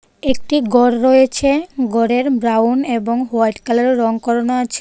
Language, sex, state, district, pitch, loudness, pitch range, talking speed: Bengali, female, Tripura, West Tripura, 245 Hz, -15 LUFS, 235-265 Hz, 135 wpm